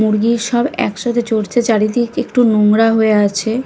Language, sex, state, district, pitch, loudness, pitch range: Bengali, female, Odisha, Nuapada, 225 Hz, -14 LUFS, 215-240 Hz